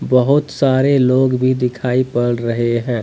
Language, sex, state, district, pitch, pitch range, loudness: Hindi, male, Jharkhand, Deoghar, 125 Hz, 120-130 Hz, -16 LUFS